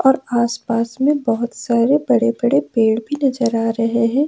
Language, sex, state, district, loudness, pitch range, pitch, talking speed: Hindi, female, Jharkhand, Ranchi, -18 LUFS, 230-270 Hz, 235 Hz, 180 wpm